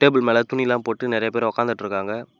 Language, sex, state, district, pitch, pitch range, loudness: Tamil, male, Tamil Nadu, Namakkal, 115 Hz, 115-125 Hz, -21 LUFS